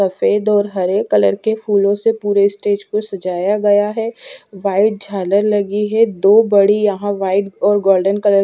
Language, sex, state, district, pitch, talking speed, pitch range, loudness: Hindi, female, Punjab, Fazilka, 205 Hz, 180 wpm, 195-210 Hz, -15 LUFS